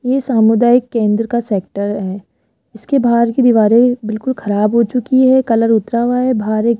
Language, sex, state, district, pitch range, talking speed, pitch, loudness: Hindi, female, Rajasthan, Jaipur, 215-250 Hz, 195 wpm, 235 Hz, -14 LUFS